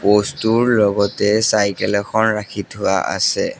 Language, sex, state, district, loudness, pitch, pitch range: Assamese, male, Assam, Sonitpur, -17 LUFS, 105 Hz, 100-110 Hz